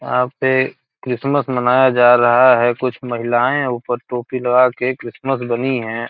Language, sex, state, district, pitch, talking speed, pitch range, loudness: Hindi, male, Bihar, Gopalganj, 125 Hz, 165 wpm, 120-130 Hz, -16 LUFS